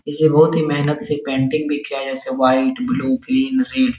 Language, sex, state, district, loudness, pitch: Hindi, male, Uttar Pradesh, Etah, -18 LUFS, 150 Hz